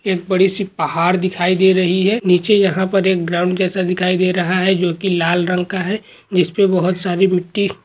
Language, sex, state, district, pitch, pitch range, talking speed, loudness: Hindi, male, Rajasthan, Churu, 185 Hz, 180-190 Hz, 215 wpm, -16 LUFS